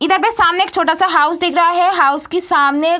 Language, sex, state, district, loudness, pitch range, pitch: Hindi, female, Bihar, Samastipur, -13 LUFS, 315-365 Hz, 345 Hz